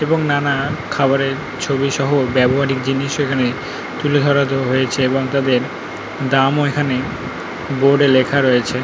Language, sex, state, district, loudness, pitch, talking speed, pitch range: Bengali, male, West Bengal, North 24 Parganas, -17 LUFS, 135 Hz, 100 wpm, 130-140 Hz